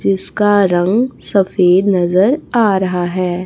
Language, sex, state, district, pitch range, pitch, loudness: Hindi, female, Chhattisgarh, Raipur, 180-205 Hz, 190 Hz, -14 LUFS